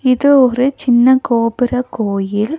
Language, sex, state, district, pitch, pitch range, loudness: Tamil, female, Tamil Nadu, Nilgiris, 250 Hz, 230-260 Hz, -14 LUFS